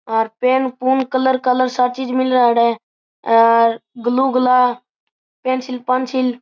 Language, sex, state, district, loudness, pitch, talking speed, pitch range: Marwari, male, Rajasthan, Churu, -16 LUFS, 255 Hz, 140 wpm, 240-260 Hz